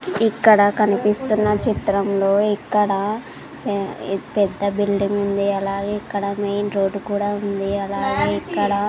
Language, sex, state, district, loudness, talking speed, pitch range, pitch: Telugu, female, Andhra Pradesh, Sri Satya Sai, -20 LUFS, 115 wpm, 200-210 Hz, 205 Hz